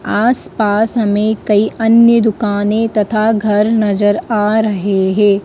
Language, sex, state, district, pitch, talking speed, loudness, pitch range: Hindi, female, Madhya Pradesh, Dhar, 215 Hz, 130 wpm, -13 LUFS, 205-225 Hz